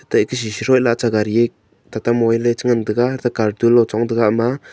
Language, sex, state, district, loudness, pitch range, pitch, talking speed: Wancho, male, Arunachal Pradesh, Longding, -17 LUFS, 110-120 Hz, 115 Hz, 240 wpm